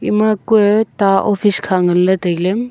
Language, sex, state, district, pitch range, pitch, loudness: Wancho, female, Arunachal Pradesh, Longding, 185-215 Hz, 200 Hz, -14 LUFS